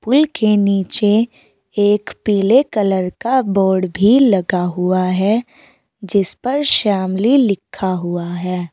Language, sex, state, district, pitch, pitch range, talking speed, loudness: Hindi, female, Uttar Pradesh, Saharanpur, 200 Hz, 185-225 Hz, 125 wpm, -16 LUFS